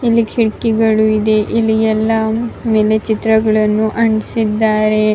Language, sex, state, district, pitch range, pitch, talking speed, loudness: Kannada, female, Karnataka, Raichur, 215-225 Hz, 220 Hz, 95 wpm, -14 LUFS